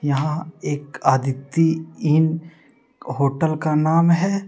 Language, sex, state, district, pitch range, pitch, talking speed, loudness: Hindi, male, Jharkhand, Deoghar, 145-165 Hz, 155 Hz, 105 wpm, -20 LUFS